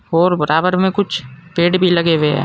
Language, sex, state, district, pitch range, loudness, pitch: Hindi, male, Uttar Pradesh, Saharanpur, 155-180 Hz, -15 LUFS, 170 Hz